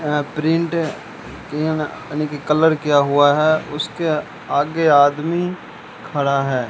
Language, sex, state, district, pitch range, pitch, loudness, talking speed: Hindi, male, Rajasthan, Bikaner, 145-160 Hz, 150 Hz, -18 LUFS, 115 wpm